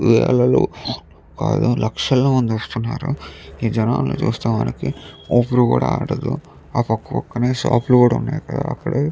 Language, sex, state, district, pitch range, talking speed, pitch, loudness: Telugu, male, Andhra Pradesh, Chittoor, 115-135 Hz, 85 wpm, 125 Hz, -19 LUFS